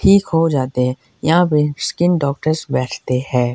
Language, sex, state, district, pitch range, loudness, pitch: Hindi, male, Himachal Pradesh, Shimla, 130-165 Hz, -17 LUFS, 145 Hz